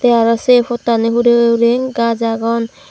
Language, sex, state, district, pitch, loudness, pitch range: Chakma, female, Tripura, Dhalai, 235 Hz, -14 LUFS, 230-240 Hz